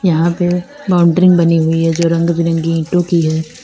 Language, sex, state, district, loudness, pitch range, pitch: Hindi, female, Uttar Pradesh, Lalitpur, -13 LUFS, 165-175 Hz, 170 Hz